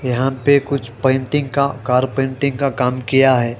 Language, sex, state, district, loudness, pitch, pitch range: Hindi, male, Haryana, Jhajjar, -17 LUFS, 130 Hz, 125-140 Hz